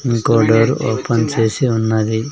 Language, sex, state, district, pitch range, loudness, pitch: Telugu, male, Andhra Pradesh, Sri Satya Sai, 110-120 Hz, -15 LUFS, 115 Hz